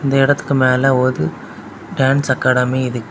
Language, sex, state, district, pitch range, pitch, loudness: Tamil, male, Tamil Nadu, Kanyakumari, 130-135 Hz, 130 Hz, -16 LUFS